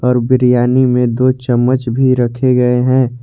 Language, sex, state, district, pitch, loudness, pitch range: Hindi, male, Jharkhand, Garhwa, 125 Hz, -12 LUFS, 125-130 Hz